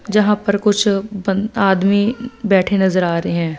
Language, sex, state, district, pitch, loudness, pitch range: Hindi, female, Punjab, Fazilka, 200 Hz, -16 LUFS, 190-210 Hz